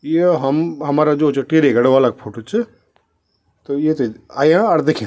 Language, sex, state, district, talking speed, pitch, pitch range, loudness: Garhwali, male, Uttarakhand, Tehri Garhwal, 165 wpm, 145 Hz, 115-155 Hz, -16 LUFS